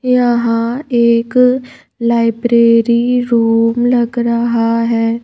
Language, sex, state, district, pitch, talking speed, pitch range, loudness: Hindi, female, Madhya Pradesh, Bhopal, 235 Hz, 80 wpm, 230-245 Hz, -13 LUFS